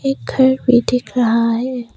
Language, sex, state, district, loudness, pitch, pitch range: Hindi, female, Arunachal Pradesh, Papum Pare, -16 LUFS, 250 Hz, 235-260 Hz